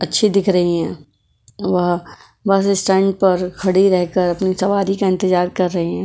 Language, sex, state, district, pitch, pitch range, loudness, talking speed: Hindi, female, Goa, North and South Goa, 185 Hz, 175-195 Hz, -17 LUFS, 170 wpm